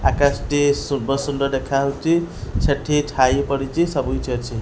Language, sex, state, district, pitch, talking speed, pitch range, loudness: Odia, male, Odisha, Khordha, 140 Hz, 155 wpm, 135-145 Hz, -20 LUFS